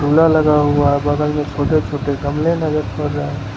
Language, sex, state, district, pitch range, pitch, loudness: Hindi, male, Gujarat, Valsad, 145-150 Hz, 145 Hz, -16 LUFS